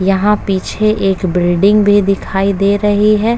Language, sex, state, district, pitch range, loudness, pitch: Hindi, female, Uttar Pradesh, Etah, 195-210 Hz, -13 LUFS, 200 Hz